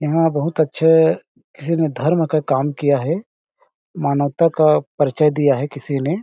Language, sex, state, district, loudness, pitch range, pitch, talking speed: Hindi, male, Chhattisgarh, Balrampur, -18 LUFS, 145-165 Hz, 155 Hz, 175 wpm